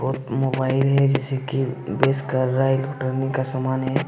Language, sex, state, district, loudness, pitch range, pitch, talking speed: Hindi, male, Jharkhand, Deoghar, -22 LUFS, 130-135 Hz, 135 Hz, 190 wpm